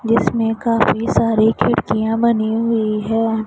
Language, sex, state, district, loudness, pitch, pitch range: Hindi, female, Punjab, Pathankot, -17 LUFS, 225 Hz, 220-230 Hz